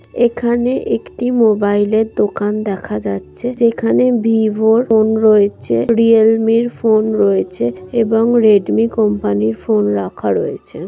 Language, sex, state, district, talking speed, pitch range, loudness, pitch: Bengali, female, West Bengal, Kolkata, 125 wpm, 200-230 Hz, -14 LUFS, 220 Hz